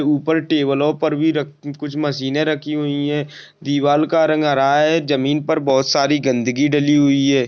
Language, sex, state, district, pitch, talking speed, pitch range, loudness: Hindi, male, Maharashtra, Nagpur, 145 Hz, 185 wpm, 140-150 Hz, -17 LUFS